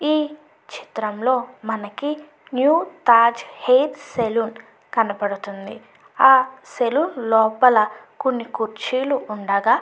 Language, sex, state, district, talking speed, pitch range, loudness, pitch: Telugu, female, Andhra Pradesh, Chittoor, 90 wpm, 220-270 Hz, -20 LUFS, 240 Hz